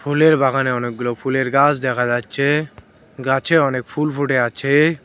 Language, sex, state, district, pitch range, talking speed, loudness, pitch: Bengali, male, West Bengal, Cooch Behar, 125-150 Hz, 145 wpm, -18 LUFS, 135 Hz